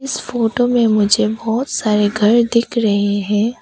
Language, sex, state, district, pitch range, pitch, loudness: Hindi, female, Arunachal Pradesh, Papum Pare, 210-240 Hz, 225 Hz, -16 LUFS